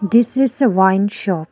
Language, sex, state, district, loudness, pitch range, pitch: English, female, Arunachal Pradesh, Lower Dibang Valley, -15 LUFS, 190-245 Hz, 205 Hz